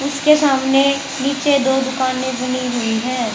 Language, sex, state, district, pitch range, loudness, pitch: Hindi, female, Haryana, Charkhi Dadri, 255-275 Hz, -17 LUFS, 265 Hz